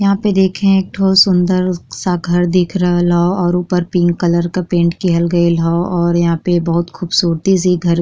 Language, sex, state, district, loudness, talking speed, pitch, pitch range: Bhojpuri, female, Uttar Pradesh, Gorakhpur, -14 LUFS, 215 wpm, 175 Hz, 170-185 Hz